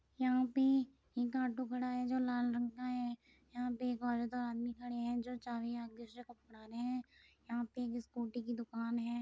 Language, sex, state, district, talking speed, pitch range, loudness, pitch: Hindi, female, Uttar Pradesh, Muzaffarnagar, 220 wpm, 235-250 Hz, -39 LUFS, 245 Hz